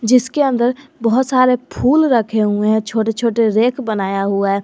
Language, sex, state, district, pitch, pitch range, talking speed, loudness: Hindi, male, Jharkhand, Garhwa, 230 Hz, 215-255 Hz, 180 wpm, -16 LUFS